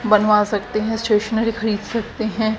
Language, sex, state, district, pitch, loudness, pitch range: Hindi, female, Haryana, Jhajjar, 215 Hz, -19 LUFS, 210-225 Hz